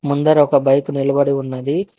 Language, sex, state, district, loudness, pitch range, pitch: Telugu, male, Telangana, Hyderabad, -16 LUFS, 135-145 Hz, 140 Hz